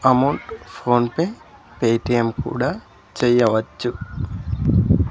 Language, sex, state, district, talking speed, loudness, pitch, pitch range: Telugu, male, Andhra Pradesh, Sri Satya Sai, 70 wpm, -21 LUFS, 120 Hz, 115-130 Hz